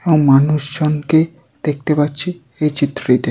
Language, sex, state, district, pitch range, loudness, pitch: Bengali, male, West Bengal, Jalpaiguri, 140-160 Hz, -16 LUFS, 150 Hz